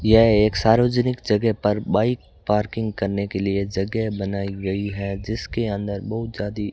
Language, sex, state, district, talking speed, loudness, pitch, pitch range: Hindi, male, Rajasthan, Bikaner, 170 wpm, -22 LUFS, 105 Hz, 100-110 Hz